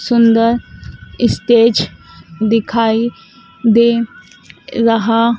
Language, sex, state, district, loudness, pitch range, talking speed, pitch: Hindi, female, Madhya Pradesh, Dhar, -14 LUFS, 220-235 Hz, 55 wpm, 230 Hz